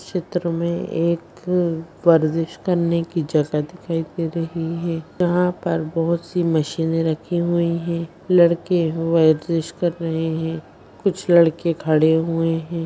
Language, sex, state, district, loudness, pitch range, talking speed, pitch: Hindi, female, Bihar, Bhagalpur, -20 LUFS, 165-170 Hz, 135 wpm, 165 Hz